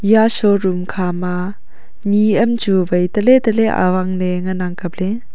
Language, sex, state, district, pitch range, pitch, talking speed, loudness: Wancho, female, Arunachal Pradesh, Longding, 180-220 Hz, 190 Hz, 170 wpm, -16 LUFS